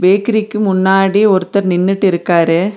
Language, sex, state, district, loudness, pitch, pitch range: Tamil, female, Tamil Nadu, Nilgiris, -13 LUFS, 195 Hz, 180-205 Hz